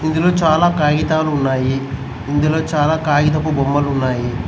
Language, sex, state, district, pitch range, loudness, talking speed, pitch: Telugu, male, Telangana, Mahabubabad, 135-155 Hz, -16 LUFS, 120 wpm, 150 Hz